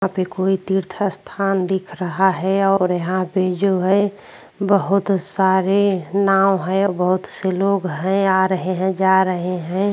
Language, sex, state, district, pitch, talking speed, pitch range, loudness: Hindi, female, Uttarakhand, Tehri Garhwal, 190 Hz, 165 wpm, 185-195 Hz, -19 LUFS